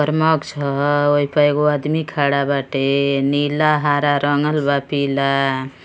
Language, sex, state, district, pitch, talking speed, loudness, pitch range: Bhojpuri, male, Uttar Pradesh, Gorakhpur, 145 Hz, 135 wpm, -18 LUFS, 140-150 Hz